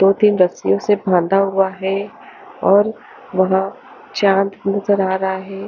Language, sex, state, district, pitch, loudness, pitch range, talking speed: Hindi, female, Haryana, Charkhi Dadri, 195 Hz, -17 LUFS, 190-200 Hz, 150 wpm